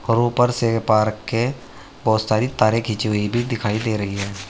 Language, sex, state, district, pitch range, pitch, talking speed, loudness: Hindi, male, Uttar Pradesh, Saharanpur, 105-120 Hz, 110 Hz, 200 wpm, -20 LUFS